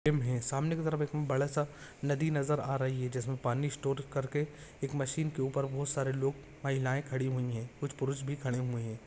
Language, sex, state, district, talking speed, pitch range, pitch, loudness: Hindi, male, Maharashtra, Pune, 205 wpm, 130-145 Hz, 135 Hz, -34 LUFS